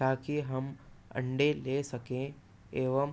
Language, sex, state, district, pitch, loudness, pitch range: Hindi, male, Uttar Pradesh, Ghazipur, 130 Hz, -34 LUFS, 130-140 Hz